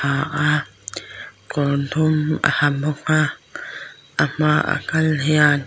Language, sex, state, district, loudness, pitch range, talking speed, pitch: Mizo, female, Mizoram, Aizawl, -19 LUFS, 145-155 Hz, 125 wpm, 150 Hz